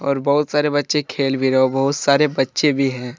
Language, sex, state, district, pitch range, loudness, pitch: Hindi, male, Jharkhand, Deoghar, 135-145 Hz, -18 LUFS, 140 Hz